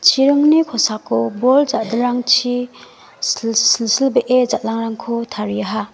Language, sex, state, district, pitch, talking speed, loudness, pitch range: Garo, female, Meghalaya, West Garo Hills, 240 Hz, 80 wpm, -16 LUFS, 225-255 Hz